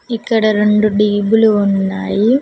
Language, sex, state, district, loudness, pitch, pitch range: Telugu, female, Telangana, Mahabubabad, -13 LUFS, 210 Hz, 205-225 Hz